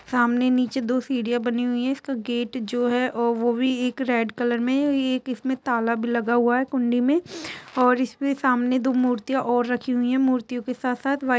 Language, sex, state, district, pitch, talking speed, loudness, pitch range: Hindi, female, Jharkhand, Jamtara, 250 Hz, 215 wpm, -23 LUFS, 240-260 Hz